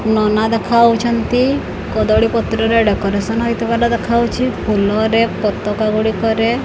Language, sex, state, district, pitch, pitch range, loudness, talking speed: Odia, female, Odisha, Khordha, 225 Hz, 215-235 Hz, -15 LUFS, 90 wpm